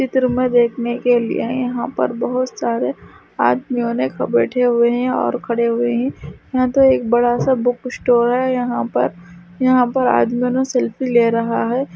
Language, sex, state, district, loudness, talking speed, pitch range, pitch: Hindi, female, Bihar, Madhepura, -17 LUFS, 185 wpm, 235-255 Hz, 245 Hz